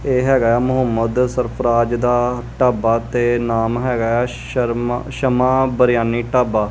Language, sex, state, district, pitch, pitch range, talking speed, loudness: Punjabi, male, Punjab, Kapurthala, 120 Hz, 115-125 Hz, 135 wpm, -17 LUFS